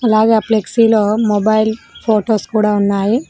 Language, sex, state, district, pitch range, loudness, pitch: Telugu, female, Telangana, Mahabubabad, 210-225 Hz, -14 LUFS, 220 Hz